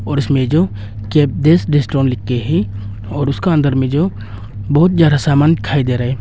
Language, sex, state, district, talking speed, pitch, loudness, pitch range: Hindi, male, Arunachal Pradesh, Longding, 195 wpm, 140 Hz, -15 LUFS, 105-150 Hz